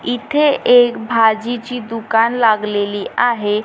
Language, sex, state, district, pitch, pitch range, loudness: Marathi, female, Maharashtra, Gondia, 230 Hz, 220-245 Hz, -15 LUFS